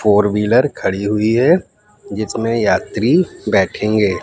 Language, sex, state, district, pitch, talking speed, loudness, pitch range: Hindi, male, Madhya Pradesh, Katni, 105 Hz, 115 wpm, -16 LUFS, 105-110 Hz